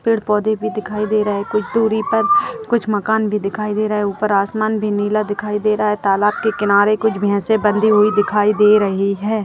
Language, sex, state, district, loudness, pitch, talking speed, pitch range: Hindi, female, Bihar, Jahanabad, -17 LUFS, 210 Hz, 230 wpm, 205-220 Hz